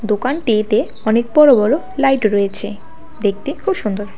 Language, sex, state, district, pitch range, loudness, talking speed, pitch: Bengali, female, West Bengal, Alipurduar, 210-275 Hz, -16 LUFS, 130 wpm, 220 Hz